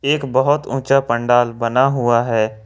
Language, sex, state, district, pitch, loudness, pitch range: Hindi, male, Jharkhand, Ranchi, 120 Hz, -16 LUFS, 120-135 Hz